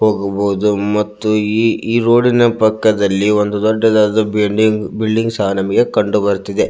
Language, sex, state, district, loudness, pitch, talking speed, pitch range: Kannada, male, Karnataka, Belgaum, -14 LUFS, 105 Hz, 105 wpm, 105-110 Hz